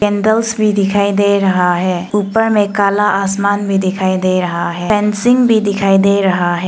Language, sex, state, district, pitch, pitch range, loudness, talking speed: Hindi, female, Arunachal Pradesh, Longding, 200 Hz, 185-210 Hz, -13 LUFS, 190 wpm